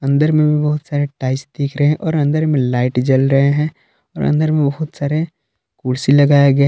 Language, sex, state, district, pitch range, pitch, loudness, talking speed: Hindi, male, Jharkhand, Palamu, 135-150 Hz, 145 Hz, -16 LUFS, 225 wpm